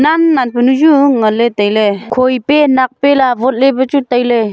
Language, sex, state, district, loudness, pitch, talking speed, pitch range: Wancho, female, Arunachal Pradesh, Longding, -11 LUFS, 260 Hz, 210 wpm, 240-280 Hz